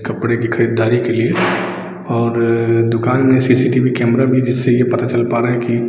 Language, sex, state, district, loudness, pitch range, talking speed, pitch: Hindi, male, Bihar, Sitamarhi, -15 LUFS, 115-125 Hz, 215 wpm, 120 Hz